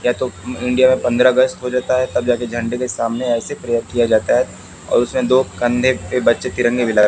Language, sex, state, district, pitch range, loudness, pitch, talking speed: Hindi, male, Haryana, Jhajjar, 120-130 Hz, -17 LUFS, 125 Hz, 245 wpm